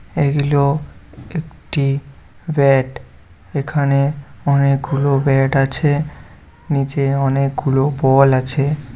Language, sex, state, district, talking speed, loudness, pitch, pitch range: Bengali, male, West Bengal, Paschim Medinipur, 80 wpm, -17 LUFS, 140 Hz, 135-145 Hz